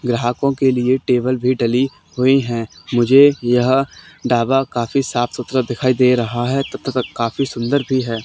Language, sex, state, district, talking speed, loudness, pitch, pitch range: Hindi, male, Haryana, Charkhi Dadri, 165 wpm, -17 LUFS, 125 Hz, 120-135 Hz